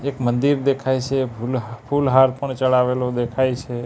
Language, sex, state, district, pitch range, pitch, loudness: Gujarati, male, Gujarat, Gandhinagar, 125-135 Hz, 130 Hz, -20 LUFS